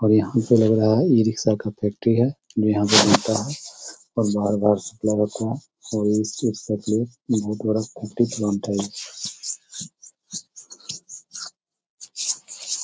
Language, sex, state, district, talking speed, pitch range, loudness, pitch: Hindi, male, Bihar, Samastipur, 110 wpm, 105-115 Hz, -22 LUFS, 110 Hz